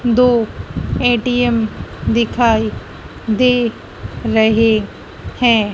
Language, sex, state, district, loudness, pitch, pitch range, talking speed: Hindi, female, Madhya Pradesh, Dhar, -16 LUFS, 235 Hz, 220-245 Hz, 65 wpm